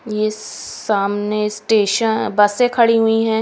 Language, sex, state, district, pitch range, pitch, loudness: Hindi, female, Haryana, Rohtak, 210-225 Hz, 215 Hz, -17 LUFS